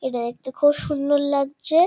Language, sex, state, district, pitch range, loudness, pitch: Bengali, female, West Bengal, Kolkata, 260-290 Hz, -22 LUFS, 285 Hz